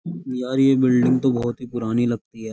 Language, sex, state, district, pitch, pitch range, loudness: Hindi, male, Uttar Pradesh, Jyotiba Phule Nagar, 125 Hz, 120-130 Hz, -21 LUFS